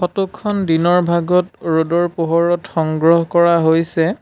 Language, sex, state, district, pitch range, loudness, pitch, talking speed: Assamese, male, Assam, Sonitpur, 165-180 Hz, -16 LUFS, 170 Hz, 130 wpm